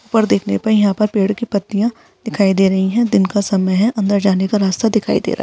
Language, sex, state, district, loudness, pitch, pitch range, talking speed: Hindi, female, Chhattisgarh, Rajnandgaon, -16 LUFS, 205 Hz, 195-220 Hz, 265 wpm